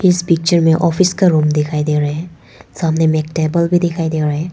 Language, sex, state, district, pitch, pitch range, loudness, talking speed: Hindi, female, Arunachal Pradesh, Papum Pare, 160 Hz, 150-170 Hz, -15 LUFS, 250 wpm